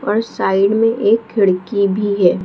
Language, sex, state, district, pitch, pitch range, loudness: Hindi, female, Bihar, Jahanabad, 205 Hz, 195-220 Hz, -15 LUFS